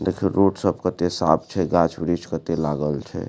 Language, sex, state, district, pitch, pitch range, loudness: Maithili, male, Bihar, Supaul, 85 Hz, 80-95 Hz, -22 LUFS